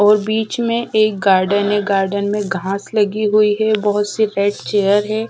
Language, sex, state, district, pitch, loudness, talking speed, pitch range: Hindi, female, Chhattisgarh, Raipur, 205 Hz, -16 LUFS, 190 wpm, 200-215 Hz